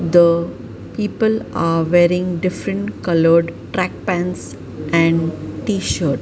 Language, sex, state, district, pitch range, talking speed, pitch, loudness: English, female, Maharashtra, Mumbai Suburban, 165-180 Hz, 95 wpm, 170 Hz, -18 LUFS